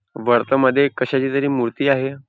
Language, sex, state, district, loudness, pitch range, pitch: Marathi, male, Maharashtra, Nagpur, -18 LUFS, 125-140 Hz, 135 Hz